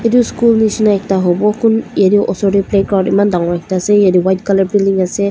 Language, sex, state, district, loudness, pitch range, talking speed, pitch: Nagamese, female, Nagaland, Dimapur, -13 LUFS, 190-210 Hz, 215 wpm, 200 Hz